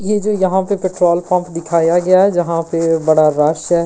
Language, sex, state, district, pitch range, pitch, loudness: Hindi, female, Delhi, New Delhi, 165-185 Hz, 175 Hz, -14 LUFS